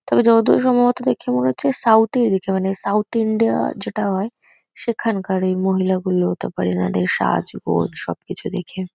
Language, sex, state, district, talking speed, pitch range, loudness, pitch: Bengali, female, West Bengal, Kolkata, 155 wpm, 180-225 Hz, -18 LUFS, 190 Hz